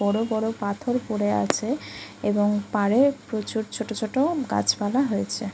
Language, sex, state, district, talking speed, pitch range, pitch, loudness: Bengali, female, West Bengal, Kolkata, 130 wpm, 205-245 Hz, 220 Hz, -24 LUFS